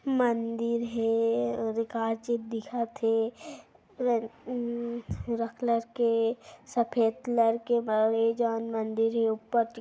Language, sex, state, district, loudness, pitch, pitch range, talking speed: Hindi, female, Chhattisgarh, Kabirdham, -29 LUFS, 230 Hz, 225-235 Hz, 120 wpm